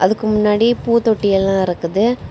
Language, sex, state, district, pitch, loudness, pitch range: Tamil, female, Tamil Nadu, Kanyakumari, 210 Hz, -16 LUFS, 195-225 Hz